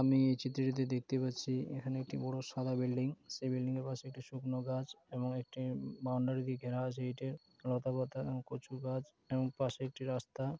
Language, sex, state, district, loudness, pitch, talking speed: Bengali, male, West Bengal, Dakshin Dinajpur, -39 LUFS, 130 Hz, 200 wpm